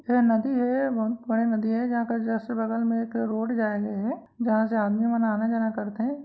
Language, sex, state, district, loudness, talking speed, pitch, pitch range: Chhattisgarhi, female, Chhattisgarh, Raigarh, -26 LUFS, 250 wpm, 230 Hz, 220-235 Hz